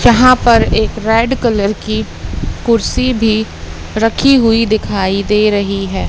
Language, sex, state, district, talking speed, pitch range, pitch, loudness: Hindi, female, Madhya Pradesh, Katni, 140 wpm, 200-235 Hz, 220 Hz, -13 LUFS